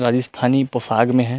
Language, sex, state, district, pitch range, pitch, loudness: Chhattisgarhi, male, Chhattisgarh, Rajnandgaon, 120-125 Hz, 125 Hz, -18 LUFS